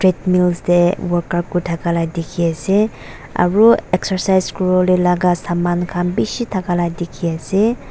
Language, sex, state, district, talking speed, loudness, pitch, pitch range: Nagamese, female, Nagaland, Dimapur, 130 wpm, -17 LUFS, 180 Hz, 175-190 Hz